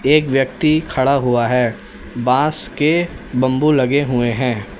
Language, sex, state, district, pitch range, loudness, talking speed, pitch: Hindi, male, Uttar Pradesh, Lalitpur, 125-150 Hz, -17 LUFS, 140 wpm, 130 Hz